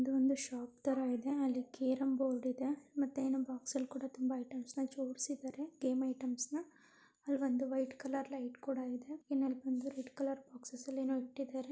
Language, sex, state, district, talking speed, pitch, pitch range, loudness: Kannada, female, Karnataka, Belgaum, 160 wpm, 265 Hz, 255-275 Hz, -39 LUFS